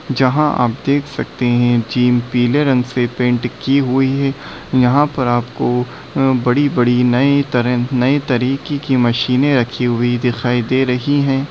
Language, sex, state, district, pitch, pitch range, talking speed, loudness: Hindi, male, Bihar, Bhagalpur, 125 Hz, 120-135 Hz, 155 wpm, -15 LUFS